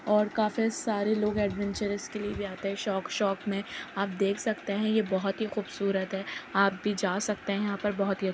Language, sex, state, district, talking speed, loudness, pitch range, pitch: Hindi, female, Uttar Pradesh, Jyotiba Phule Nagar, 225 wpm, -30 LUFS, 195-210 Hz, 205 Hz